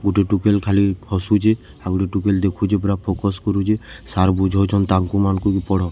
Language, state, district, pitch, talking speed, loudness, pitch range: Sambalpuri, Odisha, Sambalpur, 100 Hz, 185 wpm, -19 LUFS, 95-100 Hz